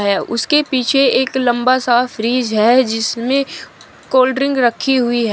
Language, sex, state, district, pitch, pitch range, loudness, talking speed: Hindi, female, Uttar Pradesh, Shamli, 250 Hz, 235-265 Hz, -15 LUFS, 145 wpm